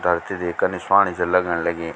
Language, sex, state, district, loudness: Garhwali, male, Uttarakhand, Tehri Garhwal, -20 LUFS